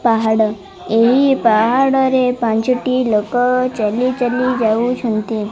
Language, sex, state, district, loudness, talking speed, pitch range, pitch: Odia, female, Odisha, Malkangiri, -15 LUFS, 85 wpm, 220-255 Hz, 240 Hz